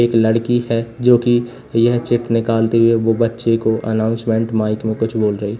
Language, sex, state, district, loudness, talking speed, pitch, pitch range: Hindi, male, Uttar Pradesh, Lalitpur, -16 LUFS, 195 wpm, 115 Hz, 110-120 Hz